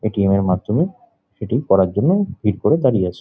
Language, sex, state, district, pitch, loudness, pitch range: Bengali, male, West Bengal, Jhargram, 105 Hz, -18 LUFS, 100-155 Hz